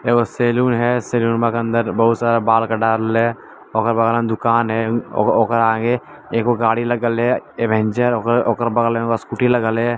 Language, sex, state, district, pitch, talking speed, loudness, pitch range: Maithili, male, Bihar, Lakhisarai, 115 Hz, 145 wpm, -17 LUFS, 115-120 Hz